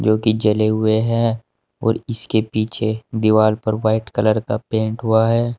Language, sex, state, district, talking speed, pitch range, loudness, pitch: Hindi, male, Uttar Pradesh, Saharanpur, 170 wpm, 110-115 Hz, -18 LUFS, 110 Hz